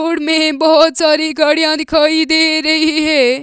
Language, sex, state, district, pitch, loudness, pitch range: Hindi, female, Himachal Pradesh, Shimla, 315 Hz, -12 LUFS, 310-320 Hz